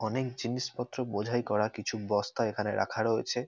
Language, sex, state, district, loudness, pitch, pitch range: Bengali, male, West Bengal, North 24 Parganas, -32 LUFS, 120 Hz, 105-125 Hz